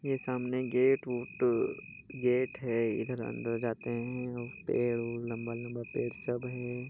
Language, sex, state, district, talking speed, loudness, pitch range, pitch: Hindi, male, Chhattisgarh, Jashpur, 150 wpm, -33 LUFS, 120-125 Hz, 120 Hz